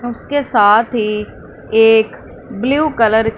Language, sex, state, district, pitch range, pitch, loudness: Hindi, female, Punjab, Fazilka, 220-245 Hz, 225 Hz, -14 LUFS